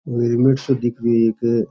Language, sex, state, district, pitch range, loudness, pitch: Rajasthani, male, Rajasthan, Churu, 115-130 Hz, -18 LUFS, 120 Hz